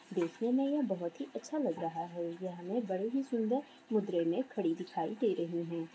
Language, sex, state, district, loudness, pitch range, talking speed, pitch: Hindi, female, Goa, North and South Goa, -36 LUFS, 170-245 Hz, 210 wpm, 185 Hz